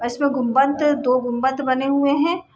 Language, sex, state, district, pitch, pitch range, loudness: Hindi, female, Bihar, Sitamarhi, 270 Hz, 255-285 Hz, -19 LUFS